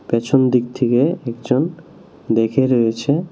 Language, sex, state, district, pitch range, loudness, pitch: Bengali, male, Tripura, West Tripura, 120-150 Hz, -18 LUFS, 130 Hz